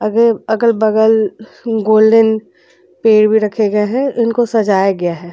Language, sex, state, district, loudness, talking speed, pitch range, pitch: Hindi, female, Chhattisgarh, Korba, -13 LUFS, 125 wpm, 205-225 Hz, 220 Hz